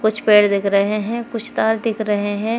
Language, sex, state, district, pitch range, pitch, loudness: Hindi, female, Uttar Pradesh, Shamli, 205-225 Hz, 215 Hz, -18 LUFS